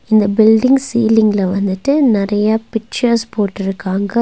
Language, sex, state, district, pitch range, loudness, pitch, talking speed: Tamil, female, Tamil Nadu, Nilgiris, 200-230 Hz, -14 LUFS, 220 Hz, 100 wpm